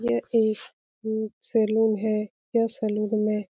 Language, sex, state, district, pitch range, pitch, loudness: Hindi, female, Bihar, Lakhisarai, 210-220 Hz, 215 Hz, -26 LUFS